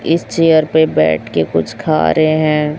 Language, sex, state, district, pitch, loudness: Hindi, male, Chhattisgarh, Raipur, 155 Hz, -13 LUFS